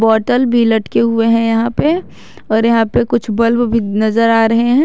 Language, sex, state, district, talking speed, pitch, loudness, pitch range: Hindi, female, Jharkhand, Garhwa, 210 wpm, 230 Hz, -13 LUFS, 225-240 Hz